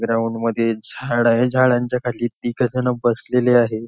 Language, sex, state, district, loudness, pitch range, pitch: Marathi, male, Maharashtra, Nagpur, -19 LUFS, 115-125 Hz, 120 Hz